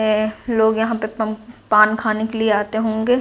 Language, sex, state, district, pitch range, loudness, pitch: Hindi, female, Bihar, Gaya, 215-225 Hz, -19 LUFS, 220 Hz